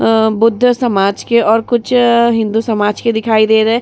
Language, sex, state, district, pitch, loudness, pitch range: Hindi, female, Uttar Pradesh, Muzaffarnagar, 225 Hz, -12 LUFS, 220-235 Hz